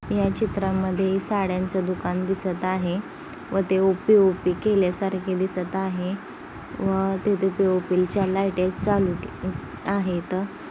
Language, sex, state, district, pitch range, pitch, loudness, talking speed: Marathi, female, Maharashtra, Sindhudurg, 185-195 Hz, 190 Hz, -24 LUFS, 125 wpm